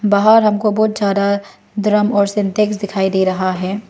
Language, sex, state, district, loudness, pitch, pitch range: Hindi, female, Arunachal Pradesh, Lower Dibang Valley, -15 LUFS, 205 Hz, 195-210 Hz